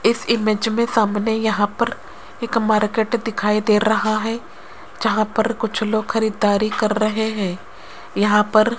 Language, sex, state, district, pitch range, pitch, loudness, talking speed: Hindi, female, Rajasthan, Jaipur, 210-225 Hz, 220 Hz, -19 LUFS, 155 wpm